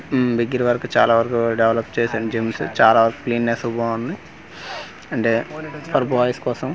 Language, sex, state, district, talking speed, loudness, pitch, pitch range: Telugu, male, Andhra Pradesh, Manyam, 135 wpm, -19 LUFS, 115 Hz, 115-125 Hz